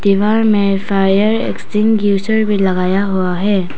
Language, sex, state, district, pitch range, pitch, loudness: Hindi, female, Arunachal Pradesh, Papum Pare, 195-210 Hz, 200 Hz, -14 LUFS